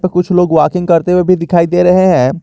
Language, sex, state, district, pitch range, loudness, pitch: Hindi, male, Jharkhand, Garhwa, 170-180 Hz, -10 LUFS, 180 Hz